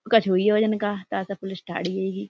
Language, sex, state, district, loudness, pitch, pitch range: Hindi, female, Uttar Pradesh, Budaun, -24 LUFS, 195 Hz, 185-210 Hz